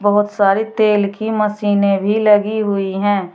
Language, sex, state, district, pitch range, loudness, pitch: Hindi, female, Uttar Pradesh, Shamli, 200-210 Hz, -16 LUFS, 205 Hz